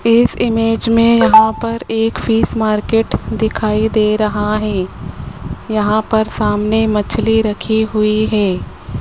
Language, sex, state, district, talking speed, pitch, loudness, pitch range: Hindi, male, Rajasthan, Jaipur, 125 wpm, 220 Hz, -14 LUFS, 210-225 Hz